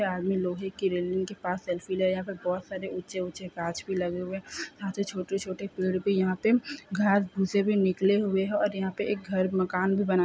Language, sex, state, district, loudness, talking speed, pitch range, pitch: Hindi, male, Chhattisgarh, Korba, -29 LUFS, 250 wpm, 185-200 Hz, 190 Hz